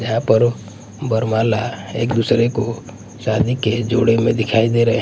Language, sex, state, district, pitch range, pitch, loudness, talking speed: Hindi, male, Punjab, Kapurthala, 110-115 Hz, 115 Hz, -18 LUFS, 165 wpm